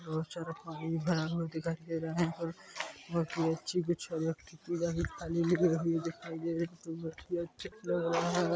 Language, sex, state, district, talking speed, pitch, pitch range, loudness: Hindi, male, Chhattisgarh, Bilaspur, 65 wpm, 165 Hz, 165-170 Hz, -35 LUFS